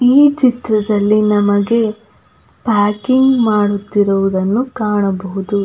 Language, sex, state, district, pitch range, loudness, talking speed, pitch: Kannada, female, Karnataka, Belgaum, 205-235 Hz, -14 LUFS, 65 wpm, 210 Hz